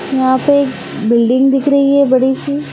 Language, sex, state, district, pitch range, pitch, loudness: Hindi, female, Maharashtra, Aurangabad, 260-280 Hz, 265 Hz, -13 LUFS